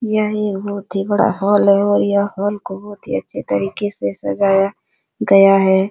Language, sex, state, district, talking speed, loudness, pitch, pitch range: Hindi, female, Bihar, Supaul, 180 wpm, -16 LUFS, 200 Hz, 195-205 Hz